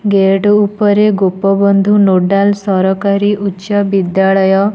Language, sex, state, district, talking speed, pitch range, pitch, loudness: Odia, female, Odisha, Nuapada, 90 wpm, 195-205 Hz, 200 Hz, -11 LUFS